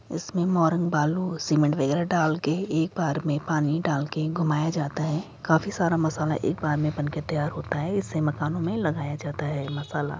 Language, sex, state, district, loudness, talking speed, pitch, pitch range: Hindi, female, Uttar Pradesh, Jyotiba Phule Nagar, -26 LUFS, 180 wpm, 155 Hz, 150-165 Hz